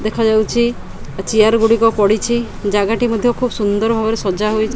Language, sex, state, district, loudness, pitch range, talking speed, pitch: Odia, female, Odisha, Khordha, -15 LUFS, 210-230 Hz, 165 wpm, 220 Hz